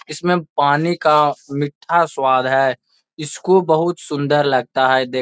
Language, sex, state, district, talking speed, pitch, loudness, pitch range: Hindi, male, Bihar, Gaya, 150 wpm, 145 Hz, -17 LUFS, 135-165 Hz